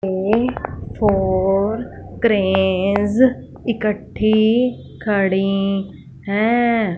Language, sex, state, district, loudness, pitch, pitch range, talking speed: Hindi, female, Punjab, Fazilka, -18 LUFS, 205 Hz, 195-225 Hz, 50 wpm